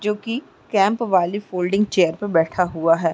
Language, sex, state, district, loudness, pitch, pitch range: Hindi, female, Chhattisgarh, Raigarh, -20 LUFS, 195 Hz, 170-210 Hz